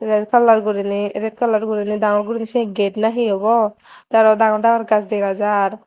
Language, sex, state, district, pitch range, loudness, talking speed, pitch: Chakma, female, Tripura, Dhalai, 210-225 Hz, -17 LUFS, 205 wpm, 215 Hz